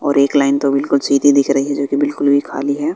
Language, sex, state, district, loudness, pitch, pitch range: Hindi, female, Bihar, West Champaran, -15 LUFS, 140 Hz, 140-145 Hz